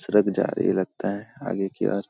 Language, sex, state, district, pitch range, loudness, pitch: Hindi, male, Bihar, Saharsa, 100-105 Hz, -25 LUFS, 100 Hz